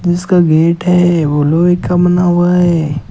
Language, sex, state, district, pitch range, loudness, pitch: Hindi, male, Rajasthan, Bikaner, 160-180 Hz, -11 LUFS, 175 Hz